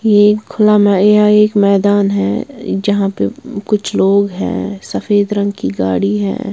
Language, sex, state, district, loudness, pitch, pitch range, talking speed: Hindi, female, Bihar, West Champaran, -13 LUFS, 205 Hz, 195-210 Hz, 145 wpm